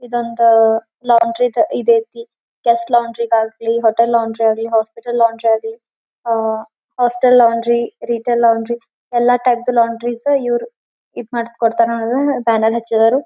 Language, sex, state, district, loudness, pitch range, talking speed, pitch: Kannada, female, Karnataka, Belgaum, -15 LUFS, 230-240 Hz, 140 wpm, 235 Hz